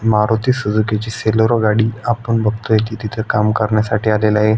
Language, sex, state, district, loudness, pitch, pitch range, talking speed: Marathi, male, Maharashtra, Aurangabad, -16 LUFS, 110 Hz, 105-110 Hz, 155 wpm